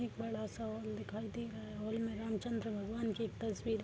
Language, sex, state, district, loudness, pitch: Hindi, female, Bihar, Darbhanga, -41 LUFS, 215 Hz